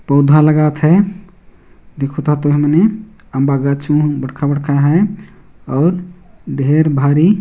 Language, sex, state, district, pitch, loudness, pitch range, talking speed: Hindi, male, Chhattisgarh, Jashpur, 150 Hz, -14 LUFS, 140-180 Hz, 120 wpm